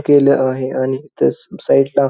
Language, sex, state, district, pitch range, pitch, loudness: Marathi, male, Maharashtra, Pune, 130-140 Hz, 130 Hz, -15 LUFS